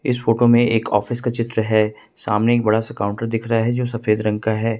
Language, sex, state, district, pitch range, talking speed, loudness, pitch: Hindi, male, Jharkhand, Ranchi, 110-120 Hz, 265 wpm, -19 LUFS, 115 Hz